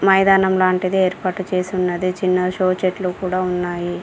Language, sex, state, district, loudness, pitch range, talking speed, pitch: Telugu, female, Telangana, Komaram Bheem, -18 LUFS, 180-190 Hz, 150 wpm, 185 Hz